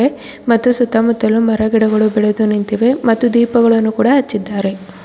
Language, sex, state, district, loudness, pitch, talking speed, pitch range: Kannada, female, Karnataka, Bidar, -14 LUFS, 225 Hz, 120 wpm, 215-235 Hz